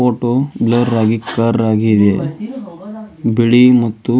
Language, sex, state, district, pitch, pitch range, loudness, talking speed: Kannada, male, Karnataka, Dharwad, 120 Hz, 115-145 Hz, -13 LUFS, 115 wpm